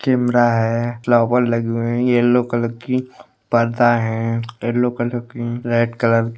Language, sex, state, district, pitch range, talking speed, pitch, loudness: Hindi, male, Bihar, Madhepura, 115-120 Hz, 160 wpm, 120 Hz, -18 LUFS